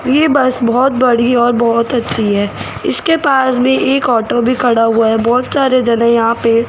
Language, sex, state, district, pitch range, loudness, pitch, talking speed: Hindi, female, Rajasthan, Jaipur, 230-260 Hz, -12 LUFS, 245 Hz, 205 wpm